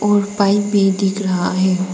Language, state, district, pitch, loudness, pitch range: Hindi, Arunachal Pradesh, Papum Pare, 195 Hz, -16 LUFS, 185-205 Hz